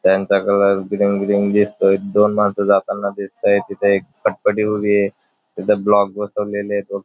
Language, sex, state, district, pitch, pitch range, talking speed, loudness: Marathi, male, Maharashtra, Dhule, 100 Hz, 100-105 Hz, 155 wpm, -17 LUFS